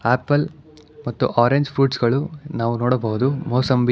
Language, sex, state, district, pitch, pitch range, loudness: Kannada, male, Karnataka, Bangalore, 130 Hz, 120-150 Hz, -20 LUFS